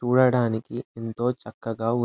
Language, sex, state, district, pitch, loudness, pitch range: Telugu, male, Andhra Pradesh, Anantapur, 120 Hz, -26 LUFS, 115-125 Hz